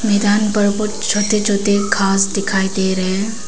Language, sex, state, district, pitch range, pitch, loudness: Hindi, female, Arunachal Pradesh, Papum Pare, 195-210 Hz, 205 Hz, -16 LUFS